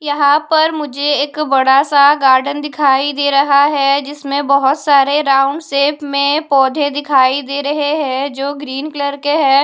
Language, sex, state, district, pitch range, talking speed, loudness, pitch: Hindi, female, Odisha, Khordha, 275-290 Hz, 170 wpm, -13 LUFS, 285 Hz